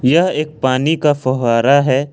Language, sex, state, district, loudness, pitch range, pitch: Hindi, male, Jharkhand, Ranchi, -15 LUFS, 130-150 Hz, 140 Hz